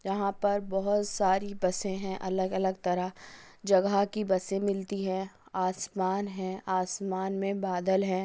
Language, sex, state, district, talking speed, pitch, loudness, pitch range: Hindi, female, Chhattisgarh, Bastar, 145 wpm, 190 Hz, -30 LUFS, 185-200 Hz